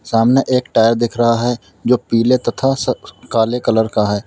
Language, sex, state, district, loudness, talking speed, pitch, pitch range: Hindi, male, Uttar Pradesh, Lalitpur, -16 LUFS, 195 wpm, 120 Hz, 115-125 Hz